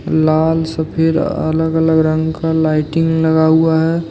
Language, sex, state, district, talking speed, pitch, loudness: Hindi, male, Jharkhand, Deoghar, 145 wpm, 160 Hz, -14 LUFS